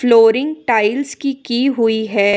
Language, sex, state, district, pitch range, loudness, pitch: Hindi, female, Jharkhand, Ranchi, 220-270 Hz, -16 LUFS, 240 Hz